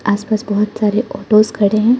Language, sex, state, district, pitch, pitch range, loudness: Hindi, female, Arunachal Pradesh, Lower Dibang Valley, 215 Hz, 210-220 Hz, -15 LUFS